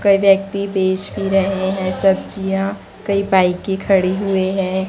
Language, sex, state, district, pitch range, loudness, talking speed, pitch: Hindi, female, Chhattisgarh, Raipur, 190-195 Hz, -17 LUFS, 145 wpm, 195 Hz